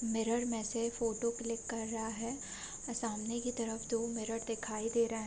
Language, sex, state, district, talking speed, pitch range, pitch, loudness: Hindi, female, Bihar, Sitamarhi, 195 wpm, 225-235 Hz, 230 Hz, -37 LUFS